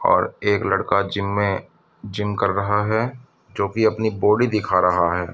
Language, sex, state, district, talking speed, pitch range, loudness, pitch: Hindi, male, Uttar Pradesh, Budaun, 180 wpm, 100-110 Hz, -20 LUFS, 100 Hz